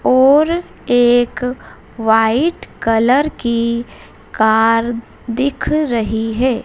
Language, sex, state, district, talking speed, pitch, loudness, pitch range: Hindi, female, Madhya Pradesh, Dhar, 80 wpm, 240 Hz, -15 LUFS, 225-260 Hz